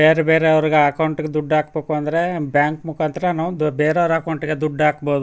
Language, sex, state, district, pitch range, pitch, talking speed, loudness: Kannada, male, Karnataka, Chamarajanagar, 150-160 Hz, 155 Hz, 160 wpm, -19 LUFS